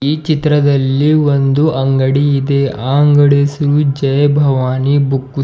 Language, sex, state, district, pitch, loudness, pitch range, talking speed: Kannada, male, Karnataka, Bidar, 140 Hz, -12 LUFS, 135-145 Hz, 145 wpm